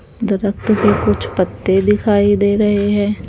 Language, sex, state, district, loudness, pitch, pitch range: Hindi, female, Haryana, Charkhi Dadri, -15 LUFS, 205 Hz, 200-210 Hz